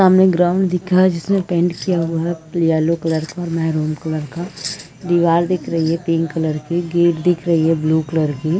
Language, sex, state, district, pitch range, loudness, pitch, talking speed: Hindi, female, Uttar Pradesh, Muzaffarnagar, 160-175 Hz, -18 LUFS, 170 Hz, 230 wpm